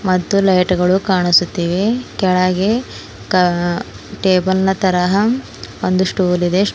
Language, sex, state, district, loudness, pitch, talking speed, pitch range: Kannada, female, Karnataka, Bidar, -16 LUFS, 185 Hz, 105 wpm, 180-195 Hz